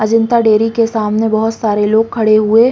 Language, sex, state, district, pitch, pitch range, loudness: Hindi, female, Uttar Pradesh, Muzaffarnagar, 220 Hz, 215-225 Hz, -12 LUFS